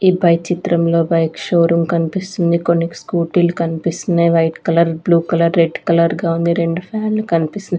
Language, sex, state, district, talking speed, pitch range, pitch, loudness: Telugu, female, Andhra Pradesh, Sri Satya Sai, 175 wpm, 165-175 Hz, 170 Hz, -16 LUFS